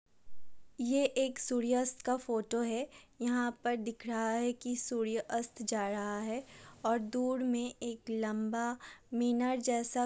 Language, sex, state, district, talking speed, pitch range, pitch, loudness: Hindi, female, Uttar Pradesh, Budaun, 150 wpm, 230-250 Hz, 240 Hz, -35 LUFS